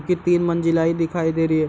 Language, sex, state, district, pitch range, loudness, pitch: Hindi, male, Bihar, Gopalganj, 165-175 Hz, -20 LUFS, 165 Hz